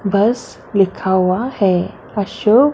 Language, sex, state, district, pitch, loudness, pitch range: Hindi, female, Maharashtra, Mumbai Suburban, 205 Hz, -17 LUFS, 190-235 Hz